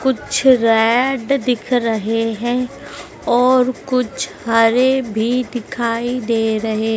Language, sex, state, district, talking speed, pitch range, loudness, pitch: Hindi, female, Madhya Pradesh, Dhar, 105 wpm, 225-255 Hz, -17 LUFS, 240 Hz